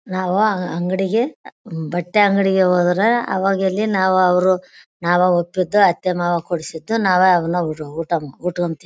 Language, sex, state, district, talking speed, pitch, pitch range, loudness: Kannada, female, Karnataka, Bellary, 120 wpm, 180 Hz, 175-195 Hz, -18 LUFS